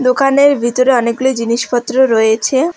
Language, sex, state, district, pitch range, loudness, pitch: Bengali, female, West Bengal, Alipurduar, 235-265 Hz, -12 LUFS, 255 Hz